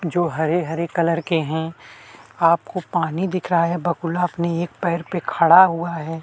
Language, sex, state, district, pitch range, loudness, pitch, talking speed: Hindi, male, Chhattisgarh, Kabirdham, 165-175 Hz, -20 LUFS, 170 Hz, 195 wpm